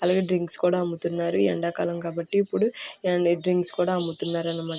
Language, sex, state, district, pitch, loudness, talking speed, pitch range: Telugu, female, Andhra Pradesh, Guntur, 175 Hz, -25 LUFS, 140 wpm, 170-180 Hz